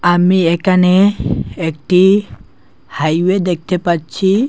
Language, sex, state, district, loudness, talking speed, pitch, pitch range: Bengali, male, Assam, Hailakandi, -14 LUFS, 80 wpm, 175 Hz, 160-190 Hz